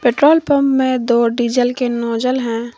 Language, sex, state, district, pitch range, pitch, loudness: Hindi, female, Jharkhand, Garhwa, 235-260 Hz, 245 Hz, -15 LUFS